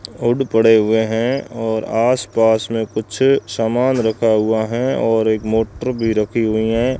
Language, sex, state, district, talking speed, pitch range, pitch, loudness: Hindi, male, Rajasthan, Bikaner, 170 wpm, 110-120 Hz, 115 Hz, -17 LUFS